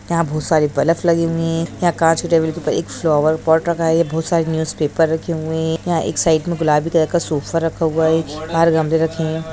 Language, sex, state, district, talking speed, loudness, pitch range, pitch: Hindi, female, Bihar, Saran, 250 wpm, -17 LUFS, 160-165 Hz, 160 Hz